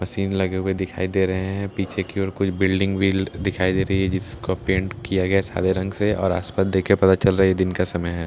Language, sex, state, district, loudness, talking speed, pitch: Hindi, male, Bihar, Katihar, -22 LUFS, 275 wpm, 95 Hz